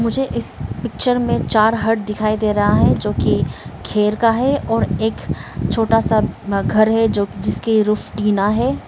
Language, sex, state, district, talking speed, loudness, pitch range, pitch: Hindi, female, Arunachal Pradesh, Lower Dibang Valley, 170 wpm, -17 LUFS, 210-230 Hz, 220 Hz